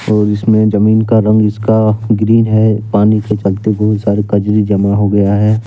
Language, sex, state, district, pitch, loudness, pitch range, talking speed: Hindi, male, Jharkhand, Deoghar, 105 Hz, -11 LUFS, 105-110 Hz, 190 wpm